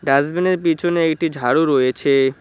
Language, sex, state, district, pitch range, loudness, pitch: Bengali, male, West Bengal, Cooch Behar, 135-170 Hz, -17 LUFS, 155 Hz